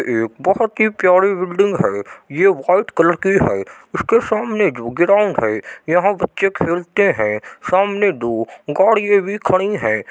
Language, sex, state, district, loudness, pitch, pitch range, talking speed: Hindi, male, Uttar Pradesh, Jyotiba Phule Nagar, -16 LUFS, 185 Hz, 140-200 Hz, 155 wpm